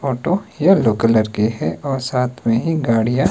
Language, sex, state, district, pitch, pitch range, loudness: Hindi, male, Himachal Pradesh, Shimla, 125 Hz, 115-145 Hz, -18 LUFS